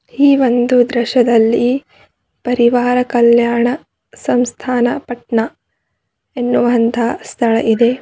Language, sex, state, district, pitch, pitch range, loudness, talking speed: Kannada, female, Karnataka, Bidar, 245 Hz, 235-250 Hz, -14 LUFS, 75 wpm